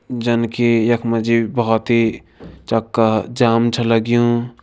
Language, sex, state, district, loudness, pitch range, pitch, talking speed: Kumaoni, male, Uttarakhand, Tehri Garhwal, -17 LUFS, 115-120 Hz, 115 Hz, 140 wpm